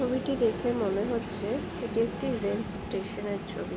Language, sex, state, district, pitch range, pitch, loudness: Bengali, female, West Bengal, Jhargram, 200-240 Hz, 220 Hz, -30 LUFS